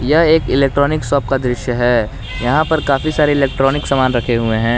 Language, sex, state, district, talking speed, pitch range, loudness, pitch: Hindi, male, Jharkhand, Garhwa, 200 wpm, 120-145 Hz, -15 LUFS, 135 Hz